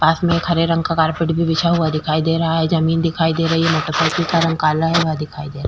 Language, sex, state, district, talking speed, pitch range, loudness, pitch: Hindi, female, Bihar, Vaishali, 335 wpm, 155-165 Hz, -17 LUFS, 165 Hz